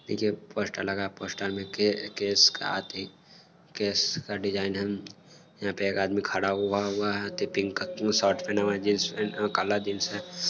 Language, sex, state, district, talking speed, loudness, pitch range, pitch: Hindi, male, Bihar, Sitamarhi, 170 wpm, -28 LUFS, 100-105 Hz, 100 Hz